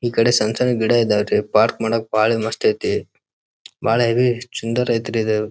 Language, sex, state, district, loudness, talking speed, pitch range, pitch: Kannada, male, Karnataka, Dharwad, -19 LUFS, 175 wpm, 110-120 Hz, 115 Hz